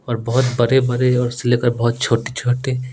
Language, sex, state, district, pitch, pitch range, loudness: Hindi, male, Bihar, Patna, 125 Hz, 120-125 Hz, -18 LUFS